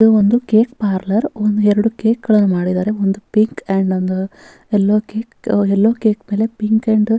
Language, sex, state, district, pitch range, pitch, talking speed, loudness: Kannada, female, Karnataka, Bellary, 200-220 Hz, 210 Hz, 150 wpm, -16 LUFS